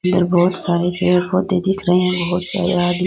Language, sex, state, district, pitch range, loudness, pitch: Rajasthani, female, Rajasthan, Nagaur, 175-185 Hz, -17 LUFS, 180 Hz